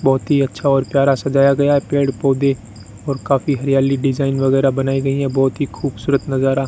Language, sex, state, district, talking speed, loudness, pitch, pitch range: Hindi, male, Rajasthan, Bikaner, 205 wpm, -17 LUFS, 135 Hz, 135-140 Hz